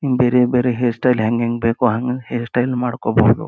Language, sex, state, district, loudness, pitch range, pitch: Kannada, male, Karnataka, Gulbarga, -18 LUFS, 115-125 Hz, 125 Hz